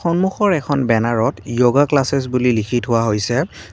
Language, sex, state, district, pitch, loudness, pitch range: Assamese, male, Assam, Kamrup Metropolitan, 125 Hz, -17 LUFS, 115-145 Hz